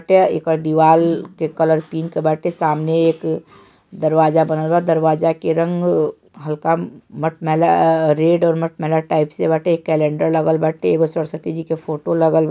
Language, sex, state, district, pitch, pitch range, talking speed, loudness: Bhojpuri, male, Bihar, Saran, 160 Hz, 155-165 Hz, 150 wpm, -17 LUFS